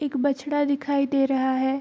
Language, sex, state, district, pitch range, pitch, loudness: Hindi, female, Bihar, Darbhanga, 270-285 Hz, 275 Hz, -24 LUFS